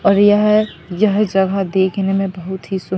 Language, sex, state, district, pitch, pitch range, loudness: Hindi, female, Madhya Pradesh, Katni, 195 Hz, 190-205 Hz, -16 LUFS